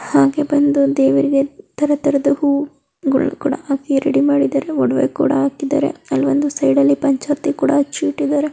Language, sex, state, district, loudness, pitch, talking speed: Kannada, female, Karnataka, Chamarajanagar, -17 LUFS, 280 Hz, 140 wpm